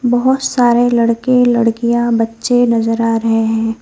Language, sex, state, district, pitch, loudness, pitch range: Hindi, female, West Bengal, Alipurduar, 235 Hz, -13 LUFS, 225-245 Hz